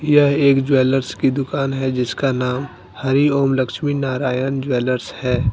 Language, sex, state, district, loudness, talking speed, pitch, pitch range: Hindi, male, Jharkhand, Deoghar, -18 LUFS, 150 wpm, 135 Hz, 125-140 Hz